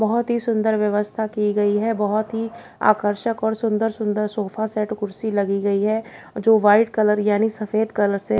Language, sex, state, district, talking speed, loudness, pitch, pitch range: Hindi, female, Bihar, Katihar, 185 wpm, -21 LUFS, 215 Hz, 210-220 Hz